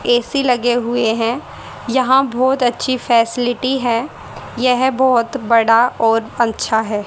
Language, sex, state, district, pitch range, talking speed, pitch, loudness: Hindi, female, Haryana, Rohtak, 230-260 Hz, 125 wpm, 245 Hz, -16 LUFS